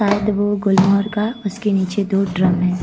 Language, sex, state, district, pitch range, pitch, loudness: Hindi, female, Uttar Pradesh, Hamirpur, 190-205 Hz, 200 Hz, -18 LUFS